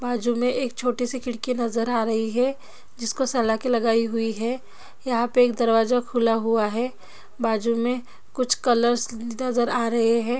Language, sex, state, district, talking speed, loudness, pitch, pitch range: Hindi, female, Bihar, Jahanabad, 175 wpm, -23 LUFS, 240 Hz, 230-245 Hz